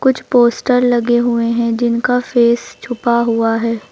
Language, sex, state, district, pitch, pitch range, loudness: Hindi, female, Uttar Pradesh, Lucknow, 240 Hz, 235-245 Hz, -14 LUFS